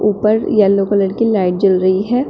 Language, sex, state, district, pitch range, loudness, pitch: Hindi, female, Uttar Pradesh, Shamli, 190-215 Hz, -14 LUFS, 200 Hz